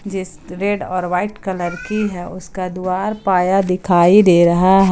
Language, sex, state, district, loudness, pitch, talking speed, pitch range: Hindi, female, Jharkhand, Palamu, -16 LUFS, 185 Hz, 170 wpm, 180-195 Hz